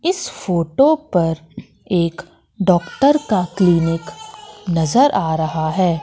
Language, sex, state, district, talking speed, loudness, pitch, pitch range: Hindi, female, Madhya Pradesh, Katni, 110 wpm, -17 LUFS, 180 Hz, 165-275 Hz